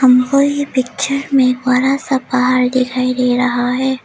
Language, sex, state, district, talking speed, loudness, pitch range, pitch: Hindi, female, Arunachal Pradesh, Lower Dibang Valley, 165 wpm, -15 LUFS, 250-270 Hz, 255 Hz